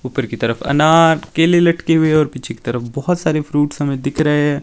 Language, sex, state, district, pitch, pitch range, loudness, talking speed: Hindi, male, Himachal Pradesh, Shimla, 145 Hz, 135-160 Hz, -16 LUFS, 245 wpm